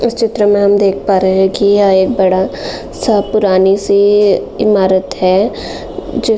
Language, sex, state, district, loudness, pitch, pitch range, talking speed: Hindi, female, Uttar Pradesh, Jalaun, -12 LUFS, 200 Hz, 190-210 Hz, 170 wpm